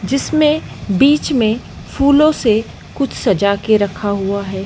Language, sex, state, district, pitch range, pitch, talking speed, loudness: Hindi, female, Madhya Pradesh, Dhar, 200-285 Hz, 225 Hz, 140 wpm, -15 LUFS